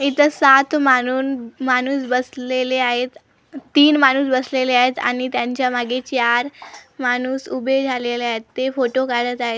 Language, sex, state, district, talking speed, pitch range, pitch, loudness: Marathi, female, Maharashtra, Gondia, 130 wpm, 245-270 Hz, 255 Hz, -18 LUFS